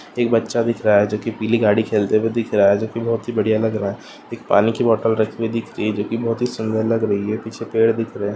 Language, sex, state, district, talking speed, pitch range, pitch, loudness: Hindi, male, Andhra Pradesh, Anantapur, 315 wpm, 105-115 Hz, 110 Hz, -19 LUFS